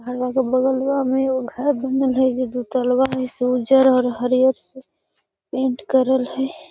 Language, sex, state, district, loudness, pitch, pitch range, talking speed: Magahi, female, Bihar, Gaya, -19 LUFS, 260 Hz, 250-265 Hz, 180 wpm